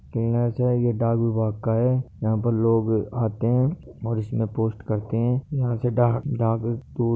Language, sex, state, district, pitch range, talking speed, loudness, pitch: Hindi, male, Rajasthan, Nagaur, 110-120 Hz, 175 wpm, -24 LUFS, 115 Hz